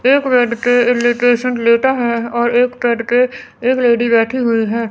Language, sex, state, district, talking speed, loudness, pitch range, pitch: Hindi, female, Chandigarh, Chandigarh, 170 wpm, -14 LUFS, 235-250 Hz, 240 Hz